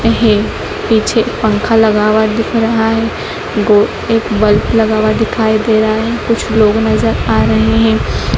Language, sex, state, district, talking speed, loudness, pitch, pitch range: Hindi, female, Madhya Pradesh, Dhar, 165 wpm, -12 LUFS, 220 Hz, 210-225 Hz